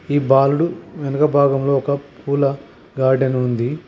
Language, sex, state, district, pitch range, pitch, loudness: Telugu, male, Telangana, Hyderabad, 135-145 Hz, 140 Hz, -18 LUFS